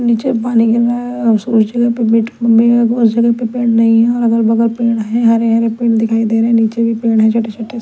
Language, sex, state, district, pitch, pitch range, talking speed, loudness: Hindi, female, Punjab, Kapurthala, 230 Hz, 225-235 Hz, 270 wpm, -13 LUFS